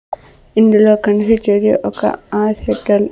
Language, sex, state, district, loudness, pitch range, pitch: Telugu, female, Andhra Pradesh, Sri Satya Sai, -14 LUFS, 205-215 Hz, 210 Hz